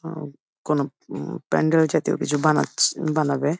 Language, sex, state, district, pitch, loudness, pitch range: Bengali, female, West Bengal, Jhargram, 155 Hz, -22 LUFS, 145-160 Hz